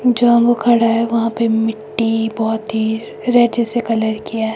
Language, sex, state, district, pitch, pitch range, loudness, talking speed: Hindi, female, Himachal Pradesh, Shimla, 225 Hz, 220-235 Hz, -16 LUFS, 185 wpm